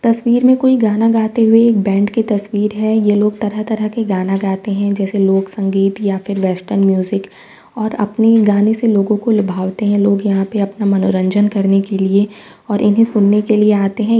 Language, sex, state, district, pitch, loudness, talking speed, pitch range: Hindi, female, Uttar Pradesh, Varanasi, 205 Hz, -14 LUFS, 205 wpm, 195-220 Hz